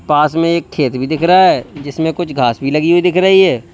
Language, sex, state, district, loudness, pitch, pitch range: Hindi, male, Uttar Pradesh, Lalitpur, -13 LUFS, 160 Hz, 140-175 Hz